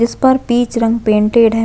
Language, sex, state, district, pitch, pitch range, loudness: Hindi, female, Chhattisgarh, Bastar, 235 Hz, 225-240 Hz, -13 LUFS